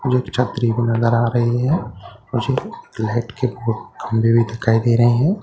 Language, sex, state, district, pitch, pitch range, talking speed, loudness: Hindi, male, Bihar, Katihar, 120 Hz, 115-125 Hz, 210 wpm, -19 LUFS